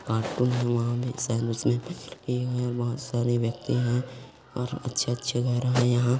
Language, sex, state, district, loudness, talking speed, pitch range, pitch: Hindi, male, Chhattisgarh, Korba, -27 LUFS, 85 wpm, 120-125 Hz, 120 Hz